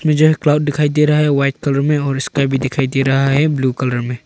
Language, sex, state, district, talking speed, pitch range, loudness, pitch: Hindi, male, Arunachal Pradesh, Longding, 255 wpm, 135-150 Hz, -15 LUFS, 140 Hz